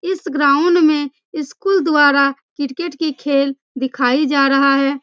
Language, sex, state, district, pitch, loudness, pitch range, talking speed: Hindi, female, Bihar, Araria, 285 Hz, -16 LUFS, 275-315 Hz, 145 wpm